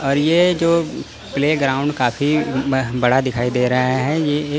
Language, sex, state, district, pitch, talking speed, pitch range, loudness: Hindi, male, Chandigarh, Chandigarh, 140 Hz, 170 wpm, 130-150 Hz, -18 LUFS